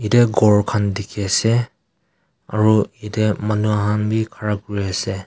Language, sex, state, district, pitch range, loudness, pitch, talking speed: Nagamese, male, Nagaland, Kohima, 105-115 Hz, -19 LUFS, 105 Hz, 135 wpm